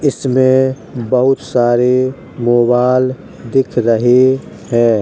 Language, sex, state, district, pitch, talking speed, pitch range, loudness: Hindi, male, Uttar Pradesh, Jalaun, 125 Hz, 85 wpm, 120-130 Hz, -13 LUFS